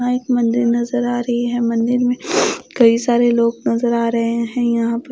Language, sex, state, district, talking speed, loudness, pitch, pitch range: Hindi, female, Bihar, Katihar, 210 wpm, -17 LUFS, 240 Hz, 235-245 Hz